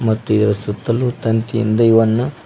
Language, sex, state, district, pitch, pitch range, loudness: Kannada, male, Karnataka, Koppal, 115 Hz, 110-115 Hz, -16 LUFS